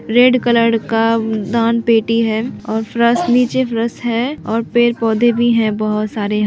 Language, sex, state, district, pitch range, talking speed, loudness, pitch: Hindi, female, Bihar, Begusarai, 220-235 Hz, 155 wpm, -15 LUFS, 230 Hz